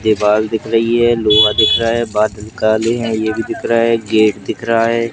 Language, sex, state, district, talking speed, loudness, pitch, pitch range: Hindi, male, Madhya Pradesh, Katni, 220 wpm, -14 LUFS, 110 Hz, 110-115 Hz